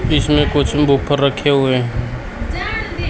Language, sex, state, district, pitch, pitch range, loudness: Hindi, male, Haryana, Charkhi Dadri, 135 Hz, 120-145 Hz, -17 LUFS